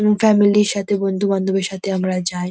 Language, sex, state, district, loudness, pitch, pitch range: Bengali, female, West Bengal, North 24 Parganas, -18 LUFS, 195 Hz, 190-205 Hz